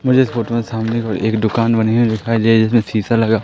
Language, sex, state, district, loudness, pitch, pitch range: Hindi, male, Madhya Pradesh, Katni, -16 LUFS, 115 Hz, 110-115 Hz